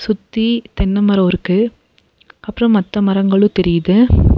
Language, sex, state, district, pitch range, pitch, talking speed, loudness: Tamil, female, Tamil Nadu, Nilgiris, 190-220 Hz, 205 Hz, 110 wpm, -14 LUFS